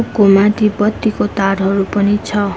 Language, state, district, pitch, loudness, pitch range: Nepali, West Bengal, Darjeeling, 205 Hz, -14 LUFS, 195-210 Hz